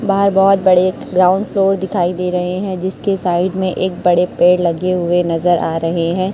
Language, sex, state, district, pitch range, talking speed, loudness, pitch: Hindi, male, Chhattisgarh, Raipur, 175-190 Hz, 210 wpm, -15 LUFS, 180 Hz